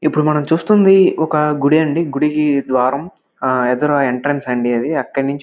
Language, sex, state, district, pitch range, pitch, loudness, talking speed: Telugu, male, Andhra Pradesh, Krishna, 135-155 Hz, 150 Hz, -15 LUFS, 155 wpm